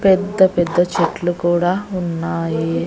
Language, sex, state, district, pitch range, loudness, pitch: Telugu, female, Andhra Pradesh, Annamaya, 170-185 Hz, -18 LUFS, 175 Hz